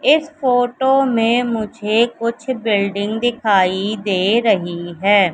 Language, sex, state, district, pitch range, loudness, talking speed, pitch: Hindi, female, Madhya Pradesh, Katni, 200-245 Hz, -17 LUFS, 115 wpm, 225 Hz